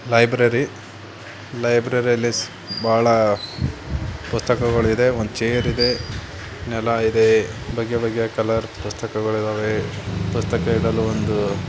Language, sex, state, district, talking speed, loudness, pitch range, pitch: Kannada, male, Karnataka, Belgaum, 85 wpm, -20 LUFS, 105-115 Hz, 115 Hz